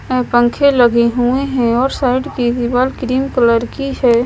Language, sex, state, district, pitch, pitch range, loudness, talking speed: Hindi, female, Punjab, Kapurthala, 250 Hz, 240-265 Hz, -14 LUFS, 185 wpm